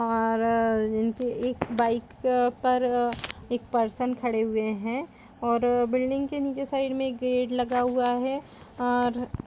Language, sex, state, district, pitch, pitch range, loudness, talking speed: Hindi, female, Chhattisgarh, Kabirdham, 245 Hz, 230-255 Hz, -27 LUFS, 140 wpm